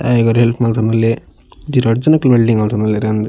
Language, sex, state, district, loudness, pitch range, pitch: Tulu, male, Karnataka, Dakshina Kannada, -14 LUFS, 110-125 Hz, 115 Hz